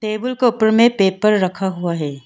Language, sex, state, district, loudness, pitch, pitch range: Hindi, female, Arunachal Pradesh, Longding, -17 LUFS, 210 Hz, 185-220 Hz